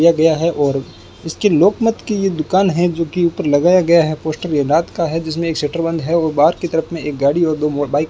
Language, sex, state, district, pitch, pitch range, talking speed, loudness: Hindi, male, Rajasthan, Bikaner, 165 Hz, 150-170 Hz, 290 wpm, -16 LUFS